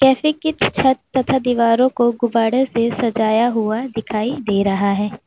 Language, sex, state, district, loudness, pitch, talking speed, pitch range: Hindi, female, Uttar Pradesh, Lalitpur, -17 LUFS, 235 Hz, 160 wpm, 220-260 Hz